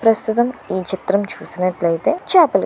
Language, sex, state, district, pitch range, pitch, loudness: Telugu, female, Andhra Pradesh, Visakhapatnam, 185-240 Hz, 200 Hz, -18 LUFS